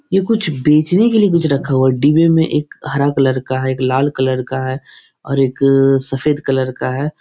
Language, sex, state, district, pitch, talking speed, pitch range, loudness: Hindi, male, Bihar, Jahanabad, 140 Hz, 225 wpm, 130-155 Hz, -15 LUFS